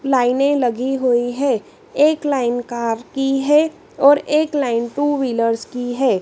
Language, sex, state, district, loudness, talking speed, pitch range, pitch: Hindi, female, Madhya Pradesh, Dhar, -18 LUFS, 155 wpm, 245-285 Hz, 270 Hz